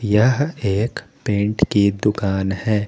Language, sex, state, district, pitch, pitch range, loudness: Hindi, male, Jharkhand, Garhwa, 105 Hz, 100-115 Hz, -19 LUFS